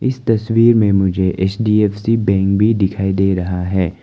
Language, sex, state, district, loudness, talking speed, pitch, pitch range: Hindi, male, Arunachal Pradesh, Longding, -15 LUFS, 165 wpm, 100 Hz, 95-110 Hz